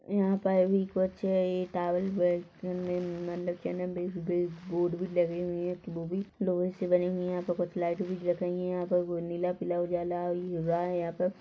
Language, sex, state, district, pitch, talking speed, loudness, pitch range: Hindi, female, Chhattisgarh, Rajnandgaon, 180 Hz, 210 wpm, -31 LUFS, 175-185 Hz